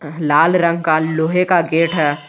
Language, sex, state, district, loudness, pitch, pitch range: Hindi, male, Jharkhand, Garhwa, -15 LUFS, 160 Hz, 155-170 Hz